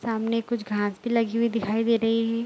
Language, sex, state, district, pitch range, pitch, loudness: Hindi, female, Bihar, Araria, 225-230 Hz, 230 Hz, -25 LUFS